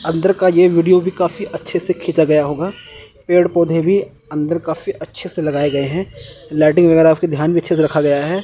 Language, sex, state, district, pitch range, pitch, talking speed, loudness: Hindi, male, Chandigarh, Chandigarh, 155-180 Hz, 170 Hz, 220 wpm, -15 LUFS